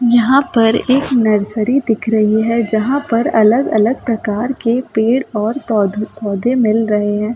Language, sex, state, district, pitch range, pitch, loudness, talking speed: Hindi, female, Delhi, New Delhi, 215-245 Hz, 225 Hz, -15 LUFS, 145 wpm